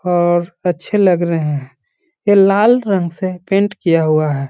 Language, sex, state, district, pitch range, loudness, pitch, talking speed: Hindi, male, Bihar, Gaya, 165-200 Hz, -15 LUFS, 180 Hz, 175 wpm